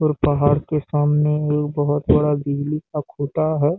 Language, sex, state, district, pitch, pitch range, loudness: Hindi, male, Chhattisgarh, Bastar, 150 Hz, 145-150 Hz, -20 LUFS